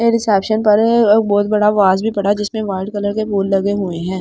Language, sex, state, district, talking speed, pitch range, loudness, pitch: Hindi, female, Delhi, New Delhi, 215 wpm, 195-215 Hz, -15 LUFS, 205 Hz